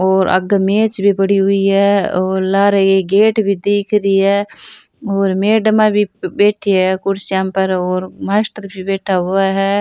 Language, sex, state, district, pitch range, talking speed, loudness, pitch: Rajasthani, female, Rajasthan, Churu, 190-205 Hz, 185 wpm, -14 LUFS, 195 Hz